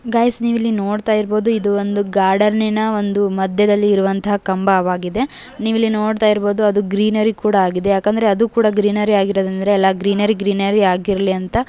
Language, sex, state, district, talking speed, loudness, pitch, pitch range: Kannada, female, Karnataka, Gulbarga, 140 wpm, -16 LUFS, 205 Hz, 195-215 Hz